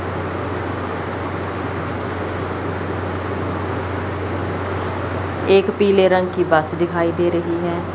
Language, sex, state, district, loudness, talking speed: Hindi, female, Chandigarh, Chandigarh, -20 LUFS, 70 wpm